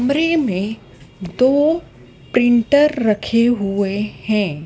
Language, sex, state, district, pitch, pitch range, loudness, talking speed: Hindi, female, Madhya Pradesh, Dhar, 230 Hz, 200-285 Hz, -17 LUFS, 90 wpm